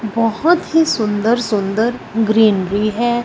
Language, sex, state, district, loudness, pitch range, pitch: Hindi, female, Punjab, Fazilka, -16 LUFS, 215-240 Hz, 225 Hz